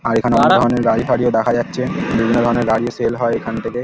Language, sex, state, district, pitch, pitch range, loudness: Bengali, male, West Bengal, Paschim Medinipur, 120 Hz, 115-120 Hz, -16 LUFS